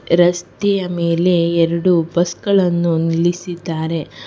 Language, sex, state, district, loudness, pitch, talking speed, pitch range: Kannada, female, Karnataka, Bangalore, -17 LUFS, 170 Hz, 85 wpm, 165-175 Hz